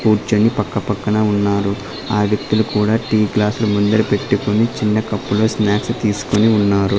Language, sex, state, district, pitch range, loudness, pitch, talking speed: Telugu, male, Andhra Pradesh, Sri Satya Sai, 100-110 Hz, -17 LUFS, 105 Hz, 130 wpm